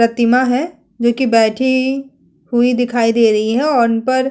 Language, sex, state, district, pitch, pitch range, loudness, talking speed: Hindi, female, Chhattisgarh, Sukma, 245 Hz, 230-260 Hz, -15 LUFS, 195 wpm